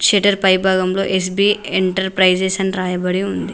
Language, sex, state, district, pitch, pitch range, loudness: Telugu, female, Telangana, Mahabubabad, 190 Hz, 185-195 Hz, -16 LUFS